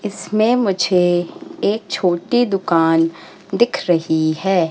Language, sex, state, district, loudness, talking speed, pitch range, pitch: Hindi, female, Madhya Pradesh, Katni, -17 LUFS, 100 wpm, 165-210 Hz, 180 Hz